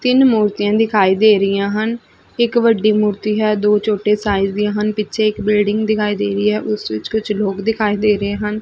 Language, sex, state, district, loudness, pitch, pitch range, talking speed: Punjabi, female, Punjab, Fazilka, -16 LUFS, 210 Hz, 205-215 Hz, 210 wpm